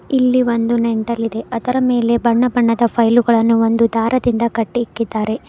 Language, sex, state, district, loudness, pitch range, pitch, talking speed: Kannada, female, Karnataka, Bidar, -16 LUFS, 230-240 Hz, 235 Hz, 130 wpm